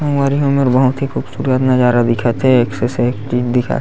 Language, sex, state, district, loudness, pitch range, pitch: Chhattisgarhi, male, Chhattisgarh, Sarguja, -15 LUFS, 120-135 Hz, 125 Hz